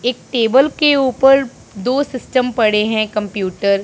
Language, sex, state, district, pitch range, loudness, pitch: Hindi, female, Punjab, Pathankot, 210-270 Hz, -15 LUFS, 245 Hz